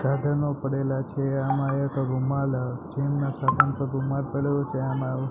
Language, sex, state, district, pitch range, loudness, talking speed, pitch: Gujarati, male, Gujarat, Gandhinagar, 135-140 Hz, -26 LUFS, 180 wpm, 135 Hz